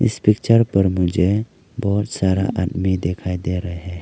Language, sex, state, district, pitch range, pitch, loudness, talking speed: Hindi, male, Arunachal Pradesh, Lower Dibang Valley, 90-105 Hz, 95 Hz, -19 LUFS, 165 wpm